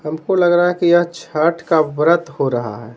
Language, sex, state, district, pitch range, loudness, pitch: Hindi, male, Bihar, Patna, 150-175 Hz, -16 LUFS, 165 Hz